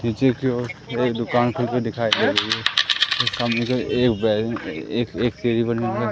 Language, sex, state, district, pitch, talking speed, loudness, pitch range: Hindi, male, Madhya Pradesh, Katni, 120 Hz, 185 wpm, -21 LUFS, 115-125 Hz